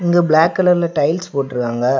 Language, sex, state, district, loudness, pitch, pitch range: Tamil, male, Tamil Nadu, Kanyakumari, -16 LUFS, 160 Hz, 135-175 Hz